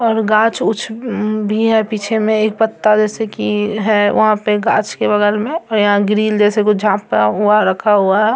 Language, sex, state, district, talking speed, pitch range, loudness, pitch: Hindi, female, Bihar, Samastipur, 180 wpm, 210-220 Hz, -14 LUFS, 215 Hz